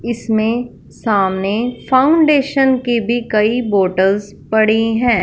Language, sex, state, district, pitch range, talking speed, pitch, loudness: Hindi, female, Punjab, Fazilka, 210-245 Hz, 105 wpm, 225 Hz, -15 LUFS